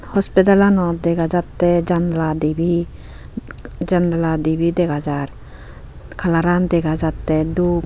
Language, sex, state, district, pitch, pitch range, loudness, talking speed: Chakma, female, Tripura, Unakoti, 170 Hz, 155-175 Hz, -18 LUFS, 105 wpm